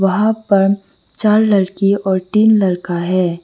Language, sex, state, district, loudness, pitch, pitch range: Hindi, female, Arunachal Pradesh, Lower Dibang Valley, -15 LUFS, 195 Hz, 185-210 Hz